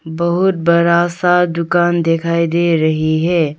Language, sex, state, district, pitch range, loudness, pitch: Hindi, female, Arunachal Pradesh, Longding, 165-175 Hz, -14 LUFS, 170 Hz